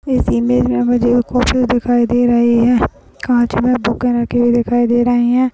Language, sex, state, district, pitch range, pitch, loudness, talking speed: Hindi, male, Maharashtra, Nagpur, 235-245 Hz, 240 Hz, -14 LUFS, 150 wpm